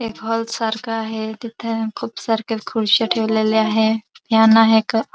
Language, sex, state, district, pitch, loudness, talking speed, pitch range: Marathi, female, Maharashtra, Dhule, 225 Hz, -18 LUFS, 165 wpm, 220-225 Hz